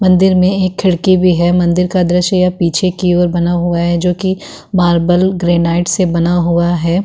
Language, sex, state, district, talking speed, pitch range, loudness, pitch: Hindi, female, Uttarakhand, Tehri Garhwal, 205 wpm, 175-185 Hz, -12 LUFS, 180 Hz